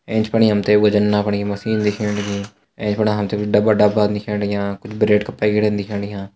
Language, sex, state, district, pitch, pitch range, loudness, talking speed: Hindi, male, Uttarakhand, Tehri Garhwal, 105 Hz, 100-105 Hz, -18 LUFS, 205 wpm